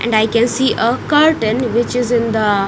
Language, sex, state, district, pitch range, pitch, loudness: English, female, Punjab, Kapurthala, 220-245 Hz, 235 Hz, -15 LUFS